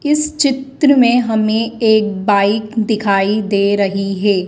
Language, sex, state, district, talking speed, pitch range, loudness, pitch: Hindi, female, Madhya Pradesh, Dhar, 135 wpm, 200-245 Hz, -14 LUFS, 215 Hz